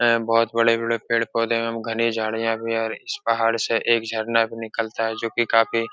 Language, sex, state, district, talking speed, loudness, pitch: Hindi, male, Uttar Pradesh, Etah, 245 wpm, -22 LUFS, 115 Hz